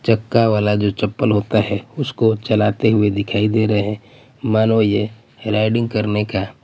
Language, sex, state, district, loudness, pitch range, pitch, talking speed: Hindi, male, Bihar, Patna, -18 LUFS, 105-115 Hz, 110 Hz, 170 wpm